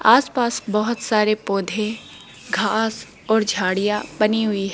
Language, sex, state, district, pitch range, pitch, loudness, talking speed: Hindi, female, Rajasthan, Jaipur, 205-220 Hz, 215 Hz, -21 LUFS, 125 wpm